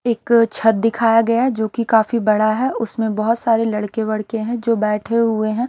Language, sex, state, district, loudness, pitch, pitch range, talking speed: Hindi, male, Odisha, Nuapada, -17 LUFS, 225 Hz, 215-235 Hz, 200 wpm